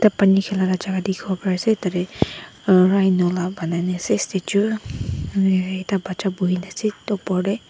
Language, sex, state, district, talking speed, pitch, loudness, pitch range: Nagamese, female, Nagaland, Dimapur, 155 wpm, 190 Hz, -21 LUFS, 185-200 Hz